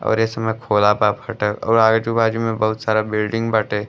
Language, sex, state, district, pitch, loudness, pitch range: Bhojpuri, male, Uttar Pradesh, Gorakhpur, 110 Hz, -18 LUFS, 105-115 Hz